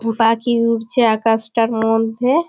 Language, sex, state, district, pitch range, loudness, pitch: Bengali, female, West Bengal, Malda, 225-235 Hz, -17 LUFS, 225 Hz